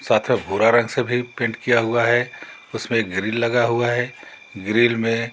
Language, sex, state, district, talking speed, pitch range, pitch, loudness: Hindi, male, Jharkhand, Garhwa, 190 wpm, 115-120 Hz, 120 Hz, -20 LUFS